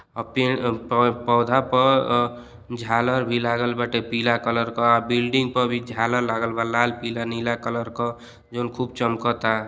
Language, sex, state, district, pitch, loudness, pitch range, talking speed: Bhojpuri, male, Uttar Pradesh, Deoria, 120 Hz, -22 LUFS, 115-120 Hz, 155 wpm